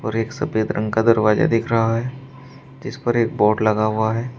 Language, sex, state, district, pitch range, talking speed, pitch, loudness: Hindi, male, Uttar Pradesh, Shamli, 110-120 Hz, 220 wpm, 115 Hz, -19 LUFS